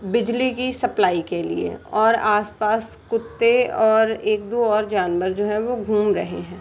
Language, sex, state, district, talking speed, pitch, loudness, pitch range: Hindi, female, Bihar, Gopalganj, 175 wpm, 215 Hz, -21 LUFS, 210-235 Hz